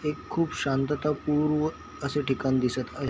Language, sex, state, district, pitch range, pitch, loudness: Marathi, male, Maharashtra, Chandrapur, 135-150 Hz, 145 Hz, -28 LUFS